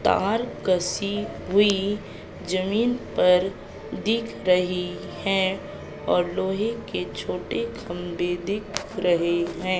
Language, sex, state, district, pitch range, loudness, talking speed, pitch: Hindi, female, Madhya Pradesh, Katni, 180-210 Hz, -25 LUFS, 100 wpm, 190 Hz